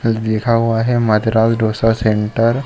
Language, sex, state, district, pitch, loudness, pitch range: Hindi, male, Jharkhand, Sahebganj, 115 Hz, -15 LUFS, 110-115 Hz